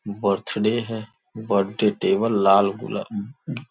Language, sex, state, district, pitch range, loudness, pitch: Hindi, male, Uttar Pradesh, Gorakhpur, 100-115 Hz, -22 LUFS, 105 Hz